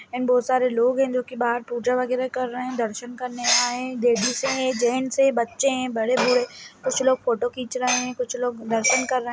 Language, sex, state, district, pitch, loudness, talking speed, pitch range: Hindi, male, Bihar, Gaya, 250 Hz, -23 LUFS, 225 wpm, 245-255 Hz